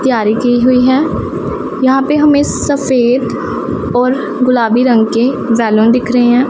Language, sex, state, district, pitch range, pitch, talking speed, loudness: Hindi, female, Punjab, Pathankot, 240-265 Hz, 250 Hz, 150 wpm, -12 LUFS